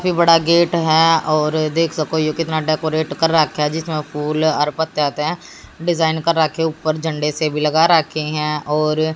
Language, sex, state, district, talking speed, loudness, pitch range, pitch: Hindi, female, Haryana, Jhajjar, 195 wpm, -17 LUFS, 150-165 Hz, 155 Hz